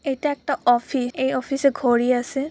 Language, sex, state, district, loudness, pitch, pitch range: Bengali, female, West Bengal, Purulia, -21 LUFS, 265 Hz, 245-280 Hz